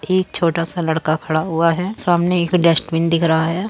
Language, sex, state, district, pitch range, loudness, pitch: Hindi, female, Uttar Pradesh, Muzaffarnagar, 165-180 Hz, -17 LUFS, 170 Hz